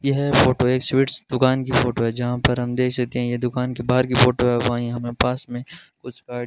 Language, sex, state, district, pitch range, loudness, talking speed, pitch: Hindi, male, Rajasthan, Bikaner, 120-130 Hz, -20 LUFS, 260 wpm, 125 Hz